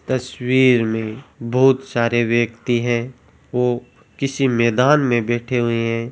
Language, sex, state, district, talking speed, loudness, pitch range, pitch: Hindi, male, Rajasthan, Churu, 125 wpm, -18 LUFS, 115-130 Hz, 120 Hz